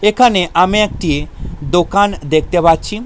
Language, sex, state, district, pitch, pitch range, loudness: Bengali, male, West Bengal, Jalpaiguri, 180 Hz, 165-210 Hz, -13 LUFS